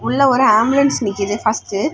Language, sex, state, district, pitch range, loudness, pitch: Tamil, female, Tamil Nadu, Kanyakumari, 205-270 Hz, -15 LUFS, 225 Hz